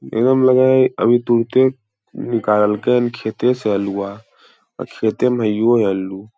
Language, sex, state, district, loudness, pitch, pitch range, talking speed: Hindi, male, Bihar, Lakhisarai, -16 LUFS, 115 Hz, 105-125 Hz, 150 wpm